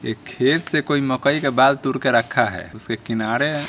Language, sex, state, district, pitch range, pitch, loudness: Hindi, male, Bihar, Saran, 130-145 Hz, 135 Hz, -20 LUFS